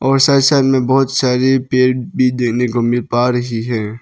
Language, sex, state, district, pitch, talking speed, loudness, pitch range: Hindi, male, Arunachal Pradesh, Lower Dibang Valley, 125 Hz, 210 wpm, -14 LUFS, 120-135 Hz